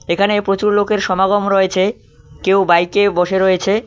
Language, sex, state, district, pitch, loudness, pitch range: Bengali, male, West Bengal, Cooch Behar, 195 Hz, -15 LUFS, 190-205 Hz